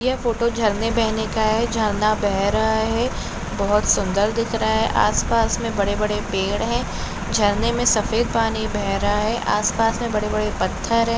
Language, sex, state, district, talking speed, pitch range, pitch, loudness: Hindi, female, Maharashtra, Pune, 170 wpm, 210-230 Hz, 220 Hz, -21 LUFS